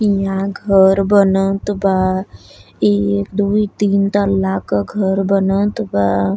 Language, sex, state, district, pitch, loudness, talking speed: Bhojpuri, female, Uttar Pradesh, Deoria, 195 Hz, -16 LUFS, 130 wpm